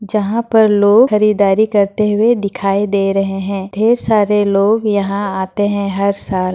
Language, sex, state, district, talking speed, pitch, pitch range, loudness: Hindi, female, Bihar, Madhepura, 165 wpm, 205 Hz, 195-215 Hz, -14 LUFS